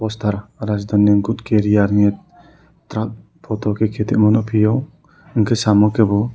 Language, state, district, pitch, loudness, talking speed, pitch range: Kokborok, Tripura, Dhalai, 110 Hz, -17 LUFS, 125 wpm, 105-115 Hz